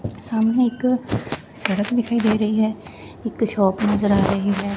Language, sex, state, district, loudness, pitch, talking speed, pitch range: Punjabi, female, Punjab, Fazilka, -20 LUFS, 215 Hz, 165 wpm, 200-230 Hz